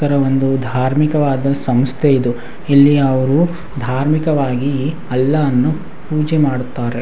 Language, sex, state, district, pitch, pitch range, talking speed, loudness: Kannada, male, Karnataka, Raichur, 135 Hz, 130-150 Hz, 105 wpm, -15 LUFS